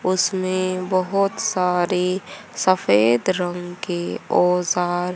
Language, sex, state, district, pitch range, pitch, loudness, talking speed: Hindi, male, Haryana, Rohtak, 180-185 Hz, 180 Hz, -21 LUFS, 80 wpm